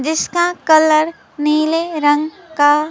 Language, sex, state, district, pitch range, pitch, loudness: Hindi, female, West Bengal, Alipurduar, 300-325 Hz, 315 Hz, -15 LUFS